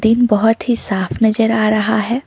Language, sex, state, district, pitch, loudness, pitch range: Hindi, female, Sikkim, Gangtok, 220 Hz, -15 LUFS, 215-225 Hz